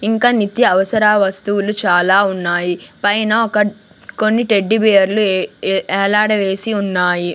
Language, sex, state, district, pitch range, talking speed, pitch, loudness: Telugu, female, Andhra Pradesh, Sri Satya Sai, 190-215 Hz, 105 wpm, 205 Hz, -15 LUFS